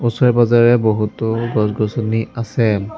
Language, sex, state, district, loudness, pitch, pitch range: Assamese, male, Assam, Sonitpur, -16 LUFS, 115 Hz, 110-120 Hz